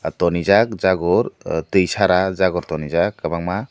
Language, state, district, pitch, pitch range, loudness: Kokborok, Tripura, Dhalai, 90 Hz, 85-95 Hz, -19 LUFS